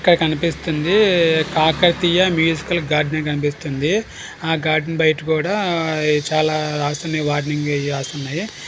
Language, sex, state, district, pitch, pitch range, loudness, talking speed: Telugu, male, Telangana, Nalgonda, 155 Hz, 150-170 Hz, -18 LUFS, 125 wpm